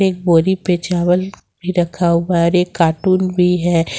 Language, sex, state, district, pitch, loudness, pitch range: Hindi, female, Jharkhand, Ranchi, 175 Hz, -15 LUFS, 170-185 Hz